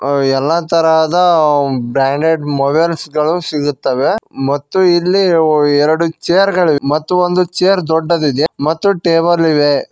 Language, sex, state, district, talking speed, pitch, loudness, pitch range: Kannada, male, Karnataka, Koppal, 110 wpm, 160 Hz, -13 LUFS, 145-175 Hz